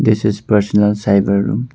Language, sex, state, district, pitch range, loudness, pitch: English, male, Arunachal Pradesh, Longding, 100-110 Hz, -15 LUFS, 105 Hz